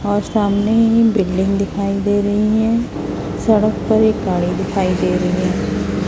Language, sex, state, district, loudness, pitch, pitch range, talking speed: Hindi, female, Chhattisgarh, Raipur, -16 LUFS, 205 Hz, 195-220 Hz, 150 wpm